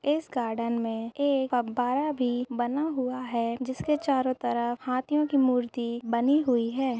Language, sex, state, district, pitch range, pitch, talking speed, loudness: Hindi, female, Maharashtra, Aurangabad, 235-270 Hz, 250 Hz, 165 wpm, -28 LUFS